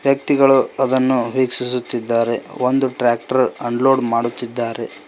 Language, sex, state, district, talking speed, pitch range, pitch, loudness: Kannada, male, Karnataka, Koppal, 85 wpm, 120-130 Hz, 125 Hz, -18 LUFS